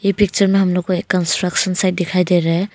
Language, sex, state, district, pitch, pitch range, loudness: Hindi, female, Arunachal Pradesh, Longding, 185 Hz, 180-195 Hz, -16 LUFS